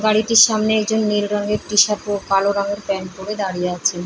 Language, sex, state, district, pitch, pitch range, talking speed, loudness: Bengali, female, West Bengal, Paschim Medinipur, 205 Hz, 195-215 Hz, 190 wpm, -18 LUFS